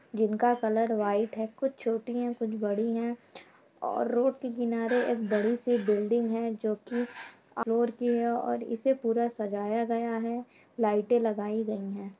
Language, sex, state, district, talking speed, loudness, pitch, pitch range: Hindi, female, Uttar Pradesh, Etah, 155 wpm, -30 LUFS, 230 Hz, 215-240 Hz